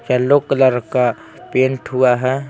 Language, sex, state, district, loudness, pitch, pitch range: Hindi, male, Bihar, Patna, -16 LUFS, 130 Hz, 125-135 Hz